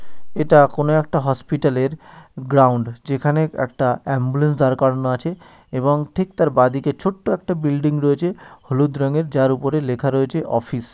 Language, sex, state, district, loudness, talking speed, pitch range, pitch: Bengali, male, West Bengal, North 24 Parganas, -19 LUFS, 155 wpm, 130-155 Hz, 140 Hz